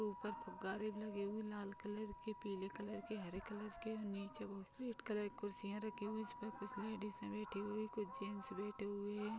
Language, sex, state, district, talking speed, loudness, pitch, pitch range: Hindi, female, Chhattisgarh, Kabirdham, 210 wpm, -47 LUFS, 205 Hz, 200-215 Hz